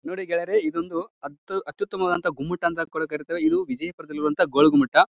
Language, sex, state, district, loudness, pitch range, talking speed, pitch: Kannada, male, Karnataka, Bijapur, -24 LUFS, 150-195 Hz, 140 wpm, 170 Hz